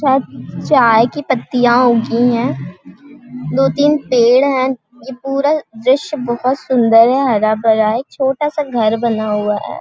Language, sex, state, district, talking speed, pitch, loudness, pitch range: Hindi, female, Chhattisgarh, Balrampur, 155 wpm, 250 Hz, -14 LUFS, 230-270 Hz